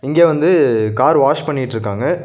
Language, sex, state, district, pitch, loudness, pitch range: Tamil, male, Tamil Nadu, Nilgiris, 135 Hz, -14 LUFS, 115-160 Hz